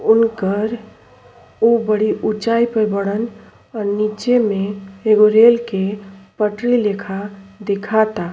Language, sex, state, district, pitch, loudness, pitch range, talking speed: Bhojpuri, female, Uttar Pradesh, Ghazipur, 215 Hz, -17 LUFS, 200-225 Hz, 110 wpm